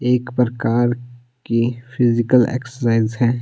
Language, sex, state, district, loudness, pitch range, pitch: Hindi, male, Himachal Pradesh, Shimla, -18 LUFS, 120-125 Hz, 120 Hz